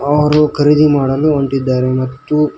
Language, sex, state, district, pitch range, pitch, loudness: Kannada, male, Karnataka, Koppal, 135-150 Hz, 145 Hz, -13 LUFS